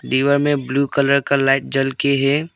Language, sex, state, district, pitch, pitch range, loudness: Hindi, male, Arunachal Pradesh, Longding, 140 Hz, 135-140 Hz, -17 LUFS